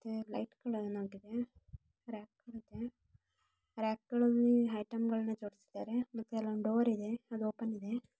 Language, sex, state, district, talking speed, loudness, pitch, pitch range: Kannada, female, Karnataka, Shimoga, 100 wpm, -37 LUFS, 225 Hz, 215-235 Hz